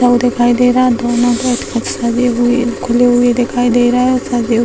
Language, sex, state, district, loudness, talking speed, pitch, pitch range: Hindi, female, Bihar, Sitamarhi, -13 LUFS, 170 wpm, 245 Hz, 240-245 Hz